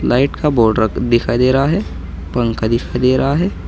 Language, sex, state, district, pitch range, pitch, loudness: Hindi, male, Uttar Pradesh, Saharanpur, 110-135 Hz, 120 Hz, -15 LUFS